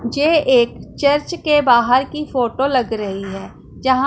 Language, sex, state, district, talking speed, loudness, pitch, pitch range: Hindi, female, Punjab, Pathankot, 160 wpm, -17 LUFS, 260 Hz, 235-290 Hz